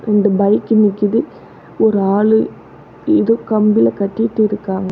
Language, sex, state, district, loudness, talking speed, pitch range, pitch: Tamil, female, Tamil Nadu, Namakkal, -15 LUFS, 100 wpm, 200-220 Hz, 210 Hz